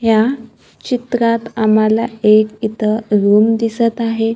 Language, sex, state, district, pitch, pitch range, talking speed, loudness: Marathi, female, Maharashtra, Gondia, 225 Hz, 215-230 Hz, 110 wpm, -15 LUFS